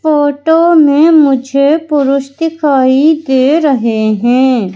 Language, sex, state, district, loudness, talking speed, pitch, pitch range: Hindi, female, Madhya Pradesh, Katni, -10 LUFS, 100 wpm, 285 Hz, 260-310 Hz